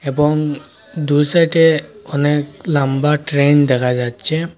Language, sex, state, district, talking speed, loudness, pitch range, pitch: Bengali, male, Assam, Hailakandi, 105 wpm, -16 LUFS, 140-155 Hz, 145 Hz